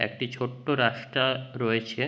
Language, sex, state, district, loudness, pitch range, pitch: Bengali, male, West Bengal, Jhargram, -27 LUFS, 115-130 Hz, 125 Hz